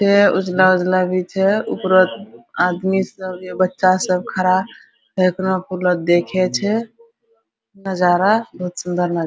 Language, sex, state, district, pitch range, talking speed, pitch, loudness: Hindi, female, Bihar, Araria, 180-195 Hz, 95 wpm, 185 Hz, -18 LUFS